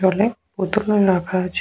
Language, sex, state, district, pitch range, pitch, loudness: Bengali, female, West Bengal, Paschim Medinipur, 185-210 Hz, 190 Hz, -20 LUFS